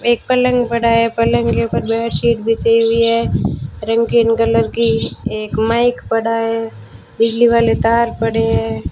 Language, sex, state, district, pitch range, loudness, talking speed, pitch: Hindi, female, Rajasthan, Bikaner, 220-230 Hz, -15 LUFS, 155 wpm, 230 Hz